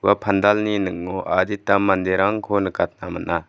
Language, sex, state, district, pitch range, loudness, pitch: Garo, male, Meghalaya, West Garo Hills, 95-100 Hz, -20 LUFS, 100 Hz